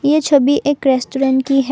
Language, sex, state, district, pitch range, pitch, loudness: Hindi, female, Assam, Kamrup Metropolitan, 270-285 Hz, 275 Hz, -15 LUFS